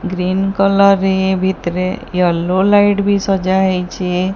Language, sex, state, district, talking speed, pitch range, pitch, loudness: Odia, female, Odisha, Sambalpur, 125 wpm, 185-195 Hz, 190 Hz, -14 LUFS